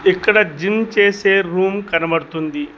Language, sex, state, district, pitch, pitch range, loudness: Telugu, male, Telangana, Mahabubabad, 195 Hz, 165-210 Hz, -16 LUFS